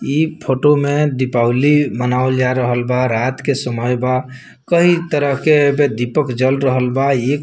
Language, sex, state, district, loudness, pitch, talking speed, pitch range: Bhojpuri, male, Bihar, Muzaffarpur, -16 LUFS, 130 Hz, 180 wpm, 125-145 Hz